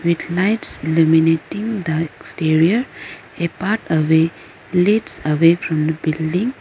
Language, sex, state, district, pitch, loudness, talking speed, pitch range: English, female, Arunachal Pradesh, Lower Dibang Valley, 165 Hz, -18 LUFS, 120 wpm, 160-190 Hz